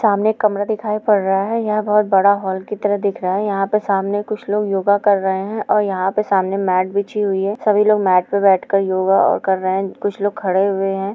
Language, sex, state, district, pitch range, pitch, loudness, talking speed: Hindi, female, Andhra Pradesh, Guntur, 195-210 Hz, 200 Hz, -17 LUFS, 255 wpm